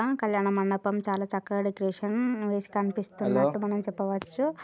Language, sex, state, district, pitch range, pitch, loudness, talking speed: Telugu, female, Andhra Pradesh, Guntur, 195-210 Hz, 200 Hz, -29 LUFS, 155 wpm